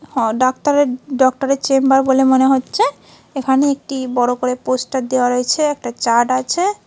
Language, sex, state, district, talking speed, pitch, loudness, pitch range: Bengali, female, West Bengal, Malda, 165 wpm, 265 Hz, -16 LUFS, 250-275 Hz